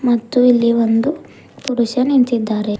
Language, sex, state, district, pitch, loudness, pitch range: Kannada, female, Karnataka, Bidar, 240 Hz, -15 LUFS, 230-255 Hz